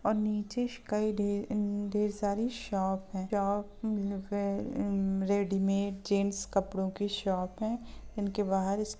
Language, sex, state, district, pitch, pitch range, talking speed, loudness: Hindi, female, Bihar, Gopalganj, 205 Hz, 195-210 Hz, 125 wpm, -32 LUFS